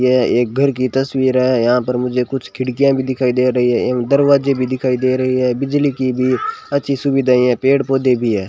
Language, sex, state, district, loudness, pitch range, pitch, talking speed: Hindi, male, Rajasthan, Bikaner, -16 LUFS, 125-135 Hz, 130 Hz, 225 wpm